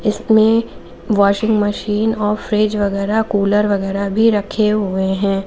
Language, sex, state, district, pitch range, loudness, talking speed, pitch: Hindi, female, Uttar Pradesh, Lalitpur, 200-215 Hz, -16 LUFS, 130 wpm, 210 Hz